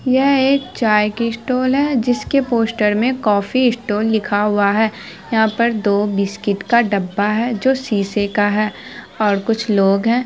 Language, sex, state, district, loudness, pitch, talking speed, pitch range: Hindi, female, Bihar, Araria, -17 LUFS, 220 Hz, 180 wpm, 205-240 Hz